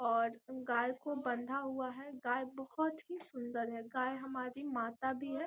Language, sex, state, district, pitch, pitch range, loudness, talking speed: Hindi, female, Bihar, Gopalganj, 260 Hz, 240-275 Hz, -40 LUFS, 175 wpm